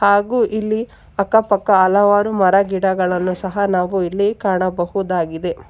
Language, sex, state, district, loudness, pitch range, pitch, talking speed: Kannada, female, Karnataka, Bangalore, -17 LUFS, 185-205 Hz, 195 Hz, 115 wpm